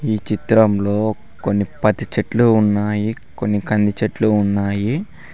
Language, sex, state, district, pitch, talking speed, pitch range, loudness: Telugu, male, Telangana, Mahabubabad, 105 Hz, 110 wpm, 105-110 Hz, -18 LUFS